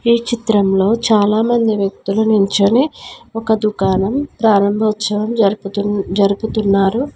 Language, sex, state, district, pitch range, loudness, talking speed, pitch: Telugu, female, Telangana, Mahabubabad, 200-225 Hz, -15 LUFS, 90 wpm, 215 Hz